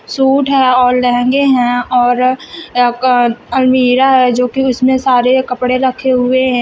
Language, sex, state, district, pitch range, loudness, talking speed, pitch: Hindi, female, Uttar Pradesh, Shamli, 245-260 Hz, -12 LUFS, 155 wpm, 255 Hz